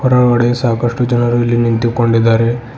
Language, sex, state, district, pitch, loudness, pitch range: Kannada, male, Karnataka, Bidar, 120 Hz, -13 LUFS, 115-120 Hz